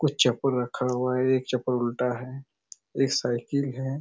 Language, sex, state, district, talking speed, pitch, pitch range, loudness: Hindi, male, Chhattisgarh, Raigarh, 180 wpm, 125 Hz, 120-135 Hz, -26 LUFS